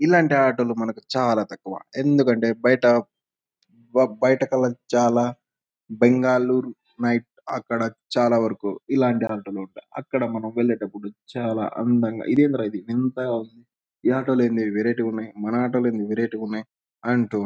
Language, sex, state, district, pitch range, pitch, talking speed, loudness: Telugu, male, Andhra Pradesh, Anantapur, 110-125 Hz, 120 Hz, 150 wpm, -22 LUFS